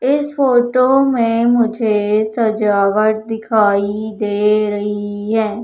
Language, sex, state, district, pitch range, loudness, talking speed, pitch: Hindi, female, Madhya Pradesh, Umaria, 210-235 Hz, -15 LUFS, 95 wpm, 220 Hz